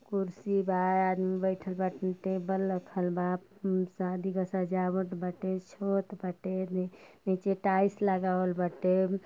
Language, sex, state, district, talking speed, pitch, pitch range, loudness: Bhojpuri, female, Uttar Pradesh, Ghazipur, 130 wpm, 185 Hz, 185-190 Hz, -32 LUFS